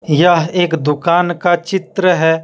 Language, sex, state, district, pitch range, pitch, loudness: Hindi, male, Jharkhand, Deoghar, 160-180 Hz, 175 Hz, -14 LUFS